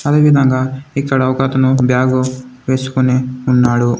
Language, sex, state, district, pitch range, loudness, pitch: Telugu, male, Telangana, Komaram Bheem, 125-135 Hz, -14 LUFS, 130 Hz